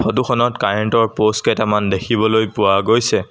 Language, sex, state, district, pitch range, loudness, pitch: Assamese, male, Assam, Sonitpur, 105-115 Hz, -16 LUFS, 110 Hz